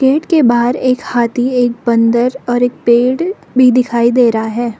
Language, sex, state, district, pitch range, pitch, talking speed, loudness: Hindi, female, Arunachal Pradesh, Lower Dibang Valley, 235-255 Hz, 245 Hz, 190 wpm, -12 LUFS